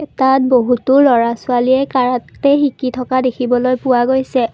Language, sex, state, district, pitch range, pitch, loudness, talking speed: Assamese, female, Assam, Kamrup Metropolitan, 245-265 Hz, 255 Hz, -14 LUFS, 130 wpm